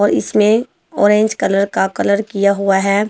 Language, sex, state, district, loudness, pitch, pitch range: Hindi, female, Himachal Pradesh, Shimla, -15 LUFS, 205 Hz, 200-210 Hz